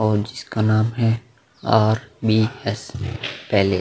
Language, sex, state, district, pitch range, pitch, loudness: Hindi, male, Bihar, Vaishali, 110-115 Hz, 110 Hz, -21 LUFS